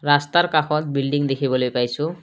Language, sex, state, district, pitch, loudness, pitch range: Assamese, male, Assam, Kamrup Metropolitan, 145 Hz, -20 LUFS, 135-155 Hz